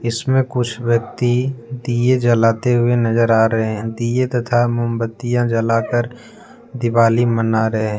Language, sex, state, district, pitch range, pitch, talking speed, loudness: Hindi, male, Jharkhand, Deoghar, 115-120 Hz, 120 Hz, 135 wpm, -17 LUFS